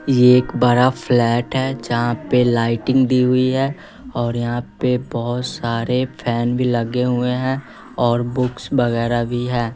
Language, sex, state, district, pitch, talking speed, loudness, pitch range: Hindi, female, Bihar, West Champaran, 125 Hz, 160 wpm, -18 LUFS, 120-130 Hz